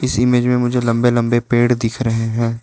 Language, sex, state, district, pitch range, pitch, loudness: Hindi, male, Arunachal Pradesh, Lower Dibang Valley, 115-125 Hz, 120 Hz, -16 LUFS